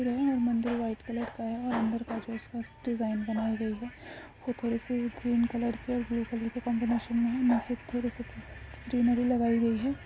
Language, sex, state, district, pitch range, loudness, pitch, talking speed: Hindi, female, Uttarakhand, Tehri Garhwal, 230-245 Hz, -31 LUFS, 235 Hz, 190 wpm